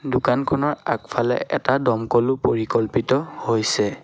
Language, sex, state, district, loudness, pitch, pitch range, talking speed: Assamese, male, Assam, Sonitpur, -21 LUFS, 115 Hz, 110-130 Hz, 90 wpm